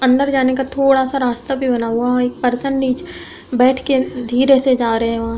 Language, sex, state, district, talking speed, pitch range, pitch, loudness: Hindi, female, Uttar Pradesh, Hamirpur, 245 wpm, 245-270 Hz, 260 Hz, -16 LUFS